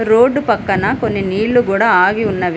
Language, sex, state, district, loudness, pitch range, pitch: Telugu, female, Telangana, Hyderabad, -14 LUFS, 195-230 Hz, 210 Hz